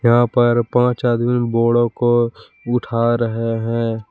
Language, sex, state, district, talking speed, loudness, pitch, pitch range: Hindi, male, Jharkhand, Palamu, 130 wpm, -17 LUFS, 120 Hz, 115-120 Hz